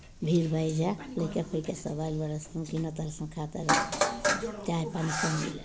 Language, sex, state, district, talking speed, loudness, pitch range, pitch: Bhojpuri, female, Bihar, Gopalganj, 210 wpm, -31 LUFS, 155-170 Hz, 160 Hz